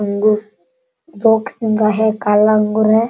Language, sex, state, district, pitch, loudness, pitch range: Hindi, male, Bihar, Sitamarhi, 215 Hz, -15 LUFS, 210-225 Hz